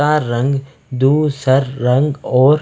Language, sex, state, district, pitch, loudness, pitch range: Hindi, male, Himachal Pradesh, Shimla, 135 Hz, -15 LUFS, 130-145 Hz